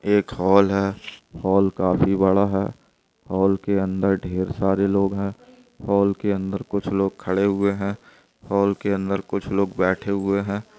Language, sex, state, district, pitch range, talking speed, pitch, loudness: Hindi, male, Andhra Pradesh, Anantapur, 95-100 Hz, 165 wpm, 100 Hz, -22 LUFS